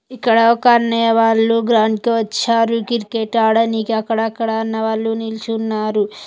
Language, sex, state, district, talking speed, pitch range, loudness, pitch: Telugu, female, Andhra Pradesh, Guntur, 115 wpm, 220-230 Hz, -16 LUFS, 225 Hz